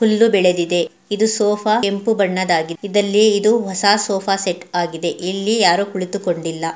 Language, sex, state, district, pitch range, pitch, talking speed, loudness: Kannada, female, Karnataka, Mysore, 175-210 Hz, 195 Hz, 125 wpm, -17 LUFS